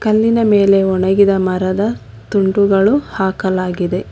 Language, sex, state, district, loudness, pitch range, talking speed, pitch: Kannada, female, Karnataka, Bangalore, -14 LUFS, 185-205 Hz, 85 wpm, 195 Hz